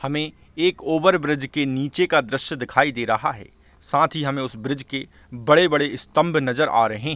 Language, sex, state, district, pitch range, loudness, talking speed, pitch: Hindi, male, Chhattisgarh, Rajnandgaon, 130-155 Hz, -21 LUFS, 190 wpm, 140 Hz